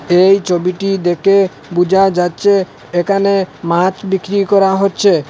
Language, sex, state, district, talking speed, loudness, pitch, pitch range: Bengali, male, Assam, Hailakandi, 115 wpm, -13 LUFS, 190 Hz, 175-195 Hz